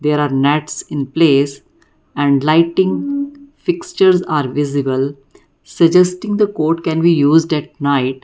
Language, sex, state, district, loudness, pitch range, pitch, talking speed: English, female, Karnataka, Bangalore, -15 LUFS, 140-180 Hz, 155 Hz, 130 wpm